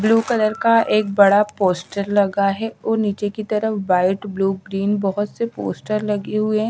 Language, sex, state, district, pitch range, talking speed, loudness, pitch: Hindi, female, Haryana, Rohtak, 200-215 Hz, 190 wpm, -19 LUFS, 205 Hz